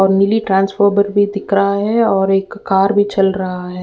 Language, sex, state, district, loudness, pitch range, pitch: Hindi, female, Uttar Pradesh, Ghazipur, -15 LUFS, 195-205 Hz, 195 Hz